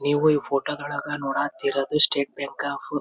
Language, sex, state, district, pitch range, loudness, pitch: Kannada, male, Karnataka, Belgaum, 140-145 Hz, -24 LUFS, 145 Hz